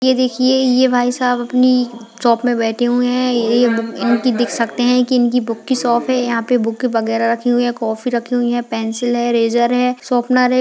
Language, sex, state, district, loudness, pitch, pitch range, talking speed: Hindi, female, Bihar, Jahanabad, -16 LUFS, 245 Hz, 235-250 Hz, 220 wpm